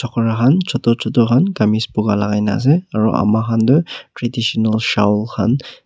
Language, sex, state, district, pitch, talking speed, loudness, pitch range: Nagamese, male, Nagaland, Kohima, 115 Hz, 165 wpm, -16 LUFS, 110-125 Hz